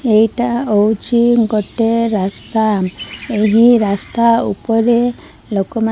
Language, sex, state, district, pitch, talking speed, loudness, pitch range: Odia, female, Odisha, Malkangiri, 225 Hz, 90 wpm, -14 LUFS, 215-235 Hz